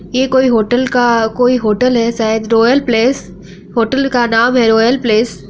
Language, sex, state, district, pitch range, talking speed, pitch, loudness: Hindi, female, Bihar, Araria, 225-250 Hz, 195 wpm, 235 Hz, -12 LUFS